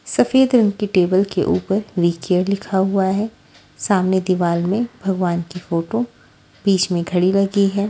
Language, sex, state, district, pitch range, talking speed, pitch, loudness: Hindi, female, Haryana, Rohtak, 180-205 Hz, 160 wpm, 190 Hz, -18 LUFS